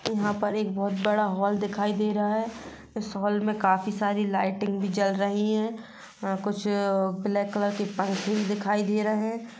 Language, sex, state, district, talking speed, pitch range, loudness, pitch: Hindi, female, Chhattisgarh, Rajnandgaon, 190 wpm, 200-210 Hz, -27 LUFS, 205 Hz